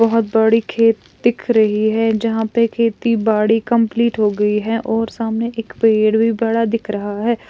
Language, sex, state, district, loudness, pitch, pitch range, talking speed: Hindi, female, Andhra Pradesh, Chittoor, -17 LUFS, 225 Hz, 220-230 Hz, 175 wpm